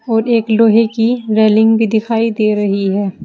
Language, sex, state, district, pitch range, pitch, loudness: Hindi, female, Uttar Pradesh, Saharanpur, 215-225 Hz, 225 Hz, -13 LUFS